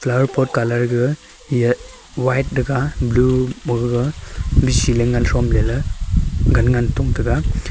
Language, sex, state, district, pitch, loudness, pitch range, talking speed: Wancho, male, Arunachal Pradesh, Longding, 120 Hz, -18 LUFS, 120-130 Hz, 125 wpm